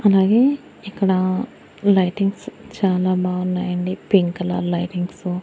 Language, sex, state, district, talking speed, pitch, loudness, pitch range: Telugu, female, Andhra Pradesh, Annamaya, 100 wpm, 185 Hz, -20 LUFS, 180-195 Hz